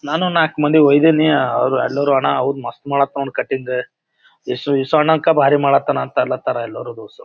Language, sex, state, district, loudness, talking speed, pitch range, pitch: Kannada, male, Karnataka, Gulbarga, -16 LUFS, 140 wpm, 140-160 Hz, 145 Hz